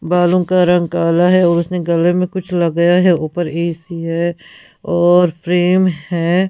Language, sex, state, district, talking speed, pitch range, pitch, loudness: Hindi, female, Punjab, Pathankot, 165 wpm, 170-180 Hz, 175 Hz, -15 LUFS